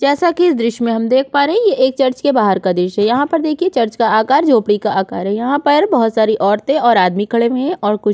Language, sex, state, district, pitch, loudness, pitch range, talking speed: Hindi, female, Chhattisgarh, Korba, 235 Hz, -14 LUFS, 210-285 Hz, 295 wpm